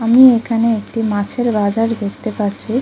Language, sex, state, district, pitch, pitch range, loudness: Bengali, female, West Bengal, Kolkata, 225 Hz, 210-230 Hz, -16 LUFS